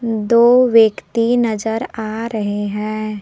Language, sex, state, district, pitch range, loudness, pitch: Hindi, female, Jharkhand, Palamu, 215-235 Hz, -16 LUFS, 225 Hz